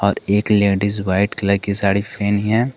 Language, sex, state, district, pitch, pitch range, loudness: Hindi, male, Jharkhand, Garhwa, 100 Hz, 100-105 Hz, -18 LUFS